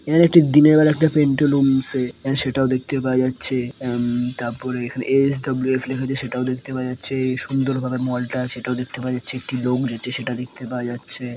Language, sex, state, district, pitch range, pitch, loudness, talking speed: Bengali, female, West Bengal, Purulia, 125-135 Hz, 130 Hz, -20 LUFS, 195 wpm